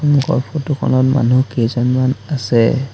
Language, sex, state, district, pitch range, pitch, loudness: Assamese, male, Assam, Sonitpur, 120-145 Hz, 130 Hz, -16 LUFS